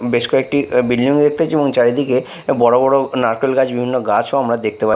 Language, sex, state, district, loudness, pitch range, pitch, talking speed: Bengali, male, Bihar, Katihar, -15 LUFS, 120-140 Hz, 130 Hz, 205 wpm